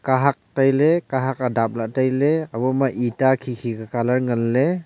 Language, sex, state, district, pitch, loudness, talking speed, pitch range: Wancho, male, Arunachal Pradesh, Longding, 130 Hz, -21 LUFS, 235 wpm, 120-135 Hz